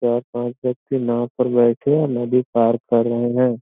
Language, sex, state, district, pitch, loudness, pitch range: Hindi, male, Bihar, Gopalganj, 120 Hz, -19 LUFS, 120-125 Hz